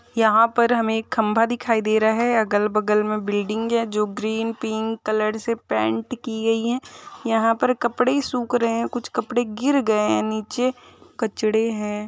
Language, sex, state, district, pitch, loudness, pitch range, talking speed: Hindi, female, Bihar, Purnia, 225 Hz, -22 LUFS, 215-240 Hz, 180 wpm